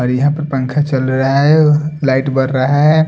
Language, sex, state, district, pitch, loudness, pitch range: Hindi, male, Delhi, New Delhi, 140 Hz, -13 LUFS, 130-150 Hz